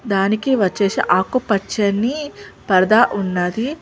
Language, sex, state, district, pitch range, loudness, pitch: Telugu, female, Telangana, Mahabubabad, 195-250 Hz, -17 LUFS, 210 Hz